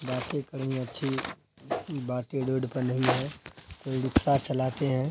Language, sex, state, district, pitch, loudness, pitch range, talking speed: Hindi, female, Bihar, Araria, 130 Hz, -29 LUFS, 130-135 Hz, 140 wpm